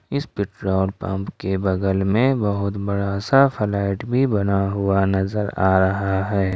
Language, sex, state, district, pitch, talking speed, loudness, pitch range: Hindi, male, Jharkhand, Ranchi, 100 Hz, 155 wpm, -21 LUFS, 95-105 Hz